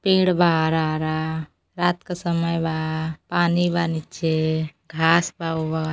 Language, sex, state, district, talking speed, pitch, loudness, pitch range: Bhojpuri, female, Uttar Pradesh, Deoria, 140 wpm, 160 Hz, -22 LUFS, 160-175 Hz